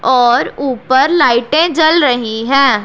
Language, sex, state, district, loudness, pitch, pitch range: Hindi, female, Punjab, Pathankot, -12 LUFS, 265 Hz, 240-310 Hz